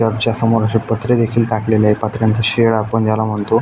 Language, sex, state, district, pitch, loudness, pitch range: Marathi, male, Maharashtra, Aurangabad, 115 Hz, -16 LUFS, 110-115 Hz